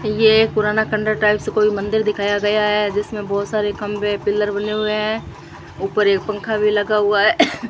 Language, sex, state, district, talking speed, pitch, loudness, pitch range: Hindi, female, Rajasthan, Bikaner, 195 wpm, 210 Hz, -18 LUFS, 205-215 Hz